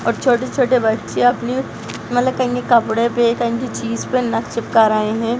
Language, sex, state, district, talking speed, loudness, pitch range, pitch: Hindi, female, Bihar, Sitamarhi, 155 wpm, -17 LUFS, 230-250 Hz, 235 Hz